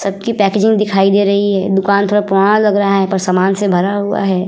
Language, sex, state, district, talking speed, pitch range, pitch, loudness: Hindi, female, Bihar, Vaishali, 265 wpm, 195-205 Hz, 200 Hz, -13 LUFS